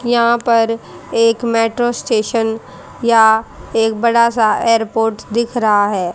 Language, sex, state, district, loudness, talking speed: Hindi, female, Haryana, Jhajjar, -15 LUFS, 125 wpm